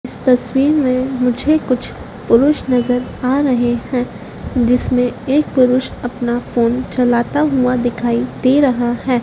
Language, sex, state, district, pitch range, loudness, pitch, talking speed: Hindi, female, Madhya Pradesh, Dhar, 245-265 Hz, -16 LUFS, 250 Hz, 135 wpm